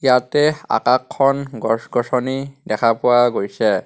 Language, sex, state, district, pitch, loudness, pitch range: Assamese, male, Assam, Kamrup Metropolitan, 125 Hz, -18 LUFS, 120-135 Hz